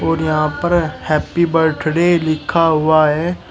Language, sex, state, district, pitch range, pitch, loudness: Hindi, male, Uttar Pradesh, Shamli, 155-170 Hz, 160 Hz, -15 LUFS